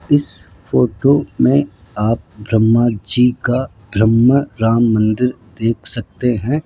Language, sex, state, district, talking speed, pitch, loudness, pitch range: Hindi, male, Rajasthan, Jaipur, 115 wpm, 115 Hz, -16 LUFS, 105-125 Hz